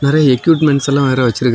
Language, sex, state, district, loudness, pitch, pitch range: Tamil, male, Tamil Nadu, Kanyakumari, -13 LUFS, 140 Hz, 130-145 Hz